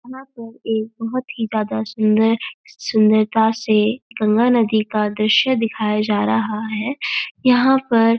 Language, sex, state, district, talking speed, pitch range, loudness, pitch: Hindi, female, Uttarakhand, Uttarkashi, 145 wpm, 215-240 Hz, -18 LUFS, 225 Hz